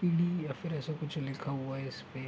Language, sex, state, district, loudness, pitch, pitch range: Hindi, male, Uttar Pradesh, Gorakhpur, -36 LUFS, 145 Hz, 135-160 Hz